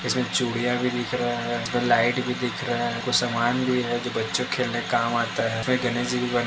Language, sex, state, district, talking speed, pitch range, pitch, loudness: Hindi, male, Maharashtra, Dhule, 250 wpm, 120-125 Hz, 120 Hz, -24 LUFS